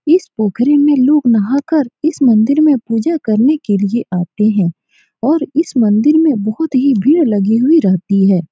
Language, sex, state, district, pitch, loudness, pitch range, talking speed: Hindi, female, Uttar Pradesh, Muzaffarnagar, 255 Hz, -13 LUFS, 215-305 Hz, 175 wpm